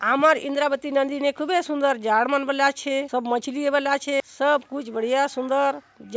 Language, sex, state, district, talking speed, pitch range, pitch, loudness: Halbi, female, Chhattisgarh, Bastar, 185 wpm, 270-285 Hz, 280 Hz, -23 LUFS